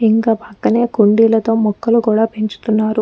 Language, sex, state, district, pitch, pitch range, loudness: Telugu, female, Telangana, Nalgonda, 225 Hz, 215-225 Hz, -15 LUFS